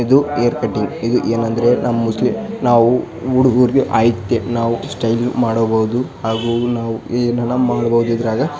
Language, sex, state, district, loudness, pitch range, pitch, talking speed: Kannada, male, Karnataka, Raichur, -16 LUFS, 115-125 Hz, 120 Hz, 130 wpm